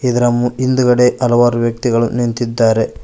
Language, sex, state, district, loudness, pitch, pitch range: Kannada, male, Karnataka, Koppal, -14 LUFS, 120 Hz, 115-125 Hz